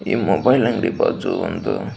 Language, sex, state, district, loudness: Kannada, male, Karnataka, Belgaum, -19 LUFS